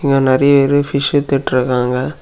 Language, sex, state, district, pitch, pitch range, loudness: Tamil, male, Tamil Nadu, Kanyakumari, 140 Hz, 130-140 Hz, -14 LUFS